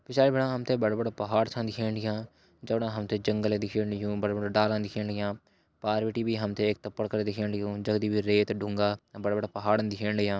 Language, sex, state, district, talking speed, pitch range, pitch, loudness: Hindi, male, Uttarakhand, Uttarkashi, 200 wpm, 105-110 Hz, 105 Hz, -29 LUFS